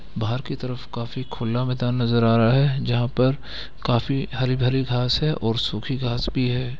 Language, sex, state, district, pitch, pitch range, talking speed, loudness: Hindi, male, Bihar, Gaya, 125 Hz, 120-130 Hz, 185 wpm, -23 LUFS